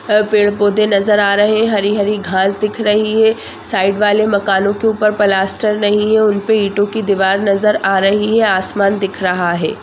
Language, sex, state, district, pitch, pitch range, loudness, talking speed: Hindi, female, Bihar, Saran, 205 Hz, 200-215 Hz, -14 LUFS, 185 wpm